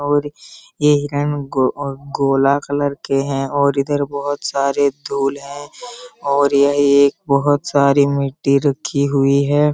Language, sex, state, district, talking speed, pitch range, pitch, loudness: Hindi, male, Bihar, Araria, 140 wpm, 140-145 Hz, 140 Hz, -17 LUFS